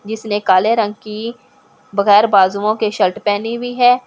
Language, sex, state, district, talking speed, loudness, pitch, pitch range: Hindi, female, Delhi, New Delhi, 175 wpm, -15 LUFS, 215 Hz, 205-225 Hz